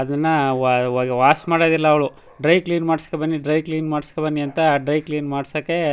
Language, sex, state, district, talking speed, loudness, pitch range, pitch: Kannada, male, Karnataka, Chamarajanagar, 160 wpm, -19 LUFS, 145-160 Hz, 155 Hz